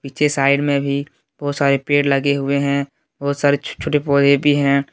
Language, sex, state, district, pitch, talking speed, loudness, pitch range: Hindi, male, Jharkhand, Deoghar, 140 Hz, 205 wpm, -18 LUFS, 140-145 Hz